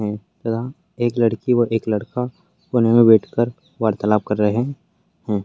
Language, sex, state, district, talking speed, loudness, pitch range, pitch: Hindi, male, Uttar Pradesh, Varanasi, 165 wpm, -19 LUFS, 110-125 Hz, 120 Hz